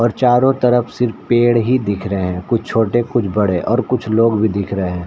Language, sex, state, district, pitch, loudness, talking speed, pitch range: Hindi, male, Bihar, Saran, 115 Hz, -16 LUFS, 235 wpm, 100-120 Hz